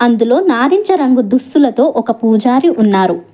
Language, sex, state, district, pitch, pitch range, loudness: Telugu, female, Telangana, Hyderabad, 250 Hz, 230-280 Hz, -11 LUFS